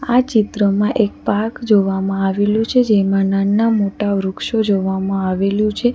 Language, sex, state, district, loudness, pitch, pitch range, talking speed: Gujarati, female, Gujarat, Valsad, -17 LUFS, 205 Hz, 195-220 Hz, 140 wpm